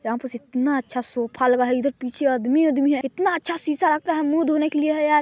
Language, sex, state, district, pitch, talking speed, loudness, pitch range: Hindi, male, Chhattisgarh, Balrampur, 280 Hz, 290 wpm, -22 LUFS, 250-310 Hz